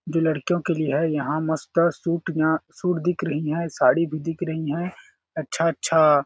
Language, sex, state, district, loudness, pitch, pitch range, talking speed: Hindi, male, Chhattisgarh, Balrampur, -23 LUFS, 165 Hz, 155-170 Hz, 200 wpm